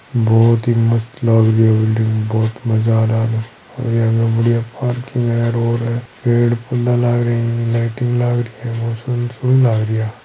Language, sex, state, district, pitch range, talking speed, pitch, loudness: Hindi, male, Rajasthan, Churu, 115-120 Hz, 195 wpm, 115 Hz, -16 LUFS